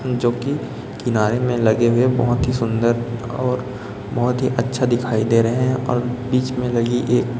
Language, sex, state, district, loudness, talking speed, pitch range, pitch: Hindi, male, Chhattisgarh, Raipur, -19 LUFS, 170 wpm, 120-125 Hz, 120 Hz